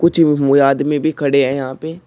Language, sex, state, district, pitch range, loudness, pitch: Hindi, male, Uttar Pradesh, Shamli, 140-160 Hz, -15 LUFS, 145 Hz